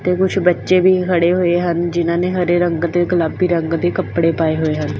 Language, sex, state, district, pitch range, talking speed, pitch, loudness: Punjabi, female, Punjab, Fazilka, 165-180 Hz, 215 wpm, 175 Hz, -16 LUFS